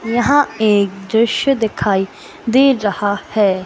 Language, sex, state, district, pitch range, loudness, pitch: Hindi, male, Madhya Pradesh, Katni, 200-240 Hz, -15 LUFS, 220 Hz